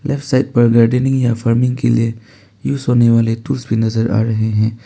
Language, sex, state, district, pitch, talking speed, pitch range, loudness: Hindi, male, Arunachal Pradesh, Papum Pare, 115 Hz, 200 wpm, 115-125 Hz, -15 LUFS